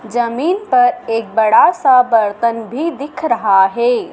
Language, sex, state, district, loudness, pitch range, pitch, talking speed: Hindi, female, Madhya Pradesh, Dhar, -14 LUFS, 225-315 Hz, 240 Hz, 145 wpm